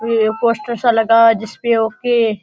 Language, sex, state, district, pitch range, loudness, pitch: Rajasthani, male, Rajasthan, Nagaur, 220-235 Hz, -15 LUFS, 230 Hz